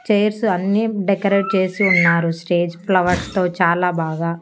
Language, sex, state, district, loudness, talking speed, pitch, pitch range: Telugu, female, Andhra Pradesh, Annamaya, -18 LUFS, 135 wpm, 185 Hz, 170-200 Hz